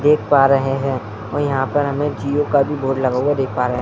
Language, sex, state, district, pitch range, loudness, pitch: Hindi, male, Bihar, Muzaffarpur, 130-145 Hz, -18 LUFS, 135 Hz